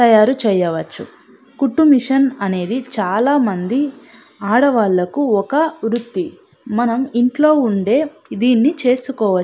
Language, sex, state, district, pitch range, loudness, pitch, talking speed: Telugu, female, Andhra Pradesh, Anantapur, 210-270 Hz, -16 LUFS, 240 Hz, 85 wpm